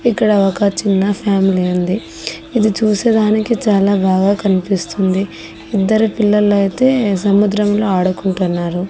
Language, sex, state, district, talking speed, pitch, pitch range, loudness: Telugu, female, Andhra Pradesh, Annamaya, 100 wpm, 200 Hz, 185-210 Hz, -15 LUFS